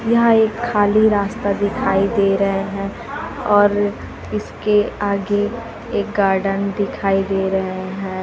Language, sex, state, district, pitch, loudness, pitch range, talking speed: Hindi, female, Chhattisgarh, Raipur, 200 Hz, -18 LUFS, 195-210 Hz, 125 wpm